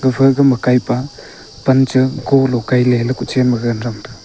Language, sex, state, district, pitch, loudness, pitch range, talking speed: Wancho, male, Arunachal Pradesh, Longding, 125 Hz, -15 LUFS, 120-130 Hz, 185 wpm